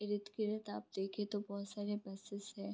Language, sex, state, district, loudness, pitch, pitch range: Hindi, female, Bihar, Vaishali, -43 LUFS, 205 Hz, 200-210 Hz